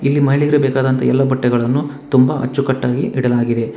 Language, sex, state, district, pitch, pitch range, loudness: Kannada, male, Karnataka, Bangalore, 130 Hz, 125-140 Hz, -16 LUFS